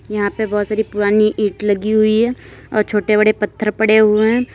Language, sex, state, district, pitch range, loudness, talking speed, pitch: Hindi, female, Uttar Pradesh, Lalitpur, 210-220 Hz, -16 LUFS, 210 wpm, 215 Hz